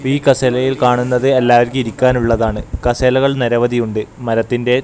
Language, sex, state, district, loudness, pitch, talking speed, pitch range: Malayalam, male, Kerala, Kasaragod, -15 LUFS, 125 Hz, 110 wpm, 120-130 Hz